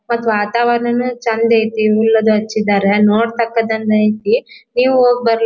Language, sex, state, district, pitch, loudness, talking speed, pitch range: Kannada, female, Karnataka, Dharwad, 225 Hz, -14 LUFS, 120 wpm, 215-235 Hz